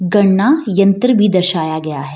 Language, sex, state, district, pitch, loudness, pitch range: Hindi, female, Bihar, Gaya, 195 Hz, -13 LUFS, 160-210 Hz